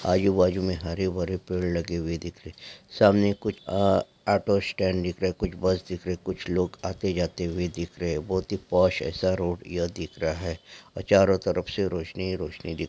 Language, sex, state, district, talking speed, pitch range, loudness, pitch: Hindi, male, West Bengal, Malda, 215 wpm, 85-95 Hz, -26 LUFS, 90 Hz